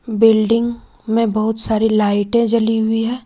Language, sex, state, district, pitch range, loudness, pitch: Hindi, female, Jharkhand, Ranchi, 220-230 Hz, -15 LUFS, 225 Hz